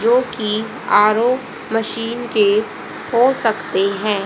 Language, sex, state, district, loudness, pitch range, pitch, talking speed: Hindi, female, Haryana, Rohtak, -17 LUFS, 210-240 Hz, 220 Hz, 115 wpm